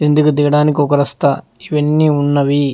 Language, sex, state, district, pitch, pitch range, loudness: Telugu, male, Telangana, Hyderabad, 145 Hz, 145-150 Hz, -14 LUFS